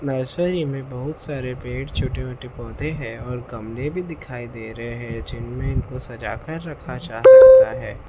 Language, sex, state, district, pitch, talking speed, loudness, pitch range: Hindi, male, Maharashtra, Mumbai Suburban, 130 Hz, 180 wpm, -17 LUFS, 120-150 Hz